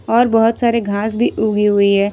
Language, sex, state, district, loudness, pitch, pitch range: Hindi, female, Jharkhand, Ranchi, -15 LUFS, 220 Hz, 205-230 Hz